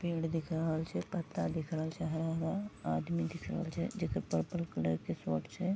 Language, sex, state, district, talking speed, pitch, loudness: Maithili, female, Bihar, Vaishali, 200 wpm, 160 Hz, -37 LUFS